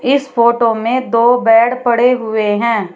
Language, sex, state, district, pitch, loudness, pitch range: Hindi, female, Uttar Pradesh, Shamli, 235 Hz, -13 LUFS, 225-245 Hz